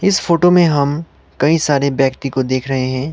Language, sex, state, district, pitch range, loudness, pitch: Hindi, male, Sikkim, Gangtok, 135-165 Hz, -15 LUFS, 140 Hz